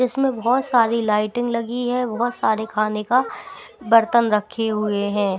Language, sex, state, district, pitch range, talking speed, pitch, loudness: Hindi, female, Bihar, Patna, 215-245 Hz, 155 wpm, 230 Hz, -20 LUFS